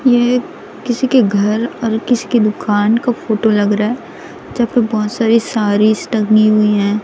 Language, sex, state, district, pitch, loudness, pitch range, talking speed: Hindi, female, Chhattisgarh, Raipur, 220 Hz, -14 LUFS, 210-240 Hz, 180 wpm